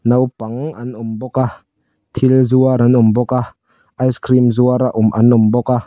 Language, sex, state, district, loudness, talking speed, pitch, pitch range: Mizo, male, Mizoram, Aizawl, -14 LUFS, 195 wpm, 125 Hz, 115-130 Hz